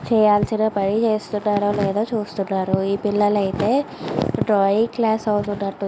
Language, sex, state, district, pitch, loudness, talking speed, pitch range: Telugu, female, Andhra Pradesh, Visakhapatnam, 205 Hz, -20 LUFS, 110 wpm, 200-220 Hz